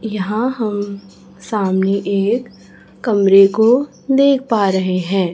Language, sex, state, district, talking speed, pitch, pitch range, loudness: Hindi, female, Chhattisgarh, Raipur, 110 wpm, 205 Hz, 195-235 Hz, -16 LUFS